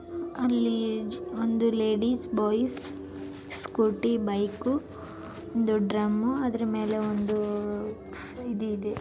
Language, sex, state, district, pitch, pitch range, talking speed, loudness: Kannada, female, Karnataka, Raichur, 215 Hz, 210-235 Hz, 85 wpm, -28 LUFS